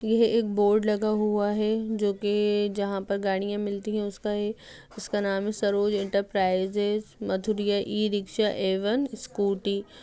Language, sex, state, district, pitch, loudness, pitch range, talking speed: Hindi, female, Uttar Pradesh, Budaun, 205 Hz, -27 LUFS, 200-215 Hz, 155 wpm